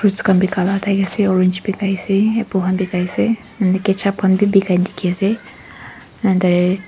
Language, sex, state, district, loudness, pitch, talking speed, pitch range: Nagamese, female, Nagaland, Dimapur, -17 LUFS, 195 Hz, 165 wpm, 185-200 Hz